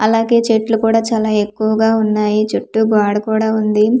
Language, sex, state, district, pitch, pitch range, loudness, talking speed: Telugu, female, Andhra Pradesh, Manyam, 220 Hz, 215-225 Hz, -15 LUFS, 180 wpm